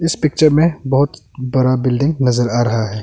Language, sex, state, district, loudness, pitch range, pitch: Hindi, male, Arunachal Pradesh, Longding, -15 LUFS, 120-150 Hz, 130 Hz